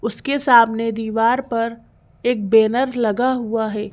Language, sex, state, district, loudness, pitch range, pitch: Hindi, female, Madhya Pradesh, Bhopal, -18 LUFS, 225-245 Hz, 230 Hz